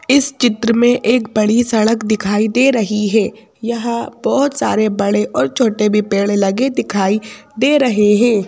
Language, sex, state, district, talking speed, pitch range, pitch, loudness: Hindi, female, Madhya Pradesh, Bhopal, 165 wpm, 210-240 Hz, 220 Hz, -15 LUFS